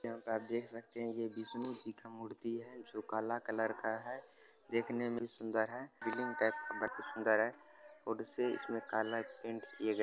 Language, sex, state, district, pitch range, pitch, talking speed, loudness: Hindi, male, Bihar, Supaul, 110-120 Hz, 115 Hz, 215 wpm, -40 LUFS